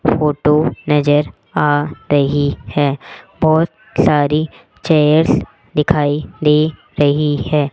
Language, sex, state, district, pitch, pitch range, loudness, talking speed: Hindi, female, Rajasthan, Jaipur, 150 Hz, 145-155 Hz, -15 LUFS, 95 wpm